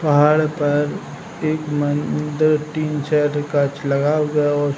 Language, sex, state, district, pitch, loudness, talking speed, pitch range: Hindi, male, Uttar Pradesh, Hamirpur, 150 Hz, -19 LUFS, 165 wpm, 145-155 Hz